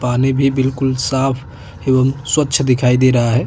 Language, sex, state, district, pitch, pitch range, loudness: Hindi, male, Chhattisgarh, Bastar, 130 Hz, 125-135 Hz, -15 LUFS